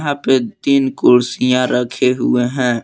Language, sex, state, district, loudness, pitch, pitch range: Hindi, male, Jharkhand, Palamu, -15 LUFS, 125 Hz, 125-130 Hz